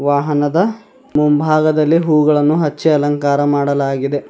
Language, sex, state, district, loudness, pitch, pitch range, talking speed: Kannada, male, Karnataka, Bidar, -15 LUFS, 150 Hz, 145-155 Hz, 85 wpm